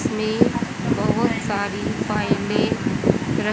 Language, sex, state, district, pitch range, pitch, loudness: Hindi, female, Haryana, Jhajjar, 205-225 Hz, 215 Hz, -22 LUFS